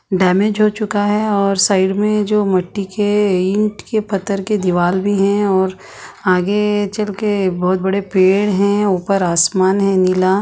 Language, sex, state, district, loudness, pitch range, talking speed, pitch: Hindi, female, Chhattisgarh, Bastar, -15 LUFS, 185-205 Hz, 165 wpm, 195 Hz